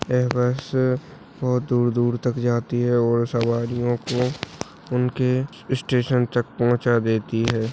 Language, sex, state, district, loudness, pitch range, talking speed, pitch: Hindi, male, Chhattisgarh, Bastar, -22 LUFS, 120-125 Hz, 130 wpm, 120 Hz